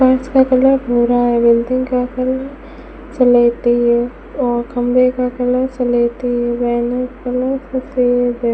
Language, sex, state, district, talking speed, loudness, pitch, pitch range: Hindi, female, Rajasthan, Bikaner, 145 wpm, -15 LUFS, 250 Hz, 240-260 Hz